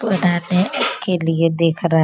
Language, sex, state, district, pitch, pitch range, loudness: Hindi, female, Bihar, Gopalganj, 175 Hz, 165-185 Hz, -18 LUFS